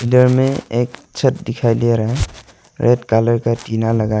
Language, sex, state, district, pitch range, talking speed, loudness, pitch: Hindi, male, Arunachal Pradesh, Longding, 115-120 Hz, 170 wpm, -17 LUFS, 115 Hz